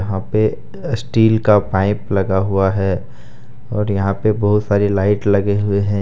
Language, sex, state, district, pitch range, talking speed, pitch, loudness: Hindi, male, Jharkhand, Deoghar, 100-110 Hz, 180 wpm, 100 Hz, -17 LUFS